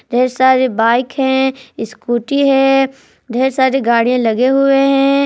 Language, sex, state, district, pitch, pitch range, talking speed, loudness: Hindi, female, Jharkhand, Palamu, 260 Hz, 245-270 Hz, 135 wpm, -13 LUFS